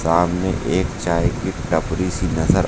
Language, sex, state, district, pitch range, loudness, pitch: Hindi, male, Uttar Pradesh, Saharanpur, 80-90 Hz, -20 LUFS, 85 Hz